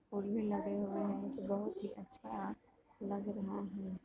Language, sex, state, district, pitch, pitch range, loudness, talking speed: Hindi, female, Uttar Pradesh, Gorakhpur, 200 Hz, 200-205 Hz, -41 LUFS, 135 wpm